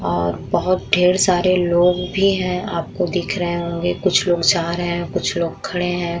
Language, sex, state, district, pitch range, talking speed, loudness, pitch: Hindi, female, Uttar Pradesh, Muzaffarnagar, 170-180 Hz, 195 wpm, -19 LUFS, 175 Hz